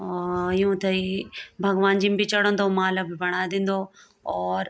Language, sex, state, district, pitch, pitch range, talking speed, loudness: Garhwali, female, Uttarakhand, Tehri Garhwal, 190 Hz, 180-195 Hz, 165 wpm, -24 LUFS